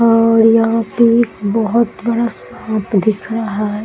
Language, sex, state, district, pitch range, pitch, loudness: Hindi, male, Bihar, East Champaran, 215-230 Hz, 225 Hz, -14 LUFS